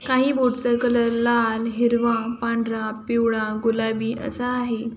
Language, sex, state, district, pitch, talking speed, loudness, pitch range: Marathi, female, Maharashtra, Sindhudurg, 235 Hz, 135 wpm, -22 LUFS, 225-240 Hz